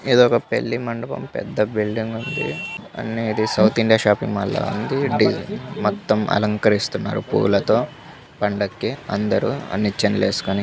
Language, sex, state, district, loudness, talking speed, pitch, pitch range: Telugu, male, Andhra Pradesh, Krishna, -21 LUFS, 115 wpm, 110 Hz, 105-115 Hz